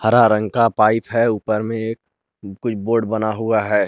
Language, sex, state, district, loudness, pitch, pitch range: Hindi, male, Jharkhand, Garhwa, -18 LUFS, 110 Hz, 110-115 Hz